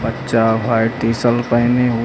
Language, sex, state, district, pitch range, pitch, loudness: Hindi, male, Uttar Pradesh, Lucknow, 115-120 Hz, 115 Hz, -16 LUFS